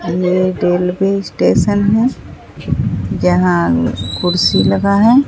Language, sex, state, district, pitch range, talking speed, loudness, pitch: Hindi, female, Bihar, Katihar, 180-200 Hz, 90 wpm, -14 LUFS, 185 Hz